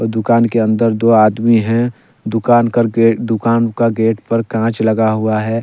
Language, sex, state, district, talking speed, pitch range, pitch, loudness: Hindi, male, Jharkhand, Deoghar, 170 wpm, 110-115 Hz, 115 Hz, -14 LUFS